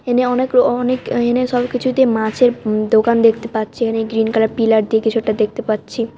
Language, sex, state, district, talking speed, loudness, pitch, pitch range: Bengali, female, West Bengal, Malda, 185 wpm, -16 LUFS, 230 Hz, 220-245 Hz